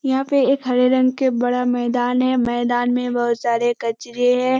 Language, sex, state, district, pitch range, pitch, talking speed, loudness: Hindi, female, Bihar, Kishanganj, 240-255 Hz, 245 Hz, 195 wpm, -19 LUFS